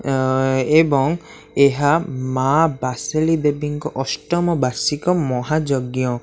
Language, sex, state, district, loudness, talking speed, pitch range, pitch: Odia, male, Odisha, Khordha, -19 LUFS, 85 wpm, 130-155 Hz, 145 Hz